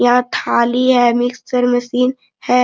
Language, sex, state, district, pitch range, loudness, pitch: Hindi, female, Jharkhand, Sahebganj, 245-250 Hz, -15 LUFS, 245 Hz